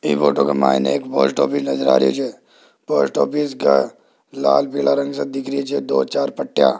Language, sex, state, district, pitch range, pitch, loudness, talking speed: Hindi, male, Rajasthan, Jaipur, 70-75 Hz, 70 Hz, -18 LUFS, 195 wpm